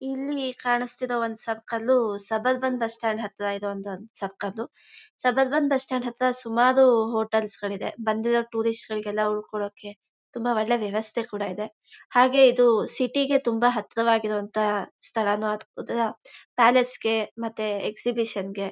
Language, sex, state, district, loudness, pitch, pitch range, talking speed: Kannada, female, Karnataka, Mysore, -25 LUFS, 225 Hz, 210-250 Hz, 130 wpm